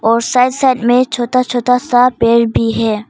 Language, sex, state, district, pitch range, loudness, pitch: Hindi, female, Arunachal Pradesh, Papum Pare, 230-250 Hz, -13 LUFS, 245 Hz